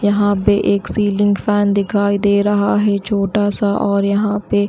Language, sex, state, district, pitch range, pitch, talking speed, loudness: Hindi, female, Bihar, Katihar, 200-205 Hz, 205 Hz, 180 wpm, -16 LUFS